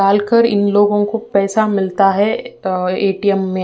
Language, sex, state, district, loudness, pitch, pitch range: Hindi, female, Uttar Pradesh, Ghazipur, -15 LUFS, 200 Hz, 195-205 Hz